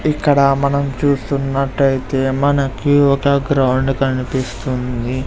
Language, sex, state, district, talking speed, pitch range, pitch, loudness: Telugu, male, Andhra Pradesh, Sri Satya Sai, 80 wpm, 130-140 Hz, 135 Hz, -16 LUFS